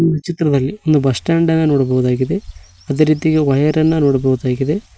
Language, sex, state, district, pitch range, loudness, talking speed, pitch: Kannada, male, Karnataka, Koppal, 130-160 Hz, -15 LUFS, 135 wpm, 150 Hz